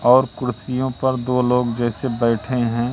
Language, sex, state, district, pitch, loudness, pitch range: Hindi, male, Madhya Pradesh, Katni, 125 Hz, -20 LUFS, 120-130 Hz